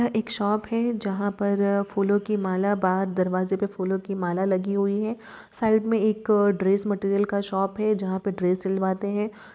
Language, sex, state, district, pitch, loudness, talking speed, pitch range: Hindi, female, Chhattisgarh, Bilaspur, 200 Hz, -25 LUFS, 195 wpm, 190-210 Hz